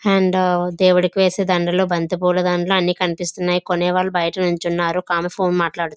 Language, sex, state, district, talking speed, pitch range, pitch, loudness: Telugu, female, Andhra Pradesh, Visakhapatnam, 170 wpm, 175-185 Hz, 180 Hz, -18 LUFS